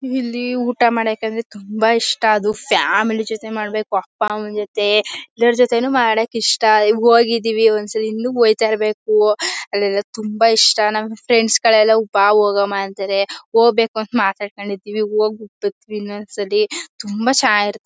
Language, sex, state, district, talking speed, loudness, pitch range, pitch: Kannada, female, Karnataka, Mysore, 150 wpm, -16 LUFS, 210-230 Hz, 220 Hz